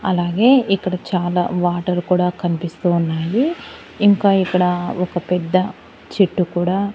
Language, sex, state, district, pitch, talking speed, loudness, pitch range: Telugu, female, Andhra Pradesh, Annamaya, 180 Hz, 105 wpm, -18 LUFS, 175-195 Hz